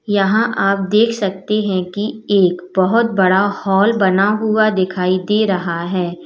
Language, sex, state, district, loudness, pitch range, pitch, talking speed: Hindi, female, Uttar Pradesh, Lalitpur, -16 LUFS, 185-215 Hz, 195 Hz, 155 wpm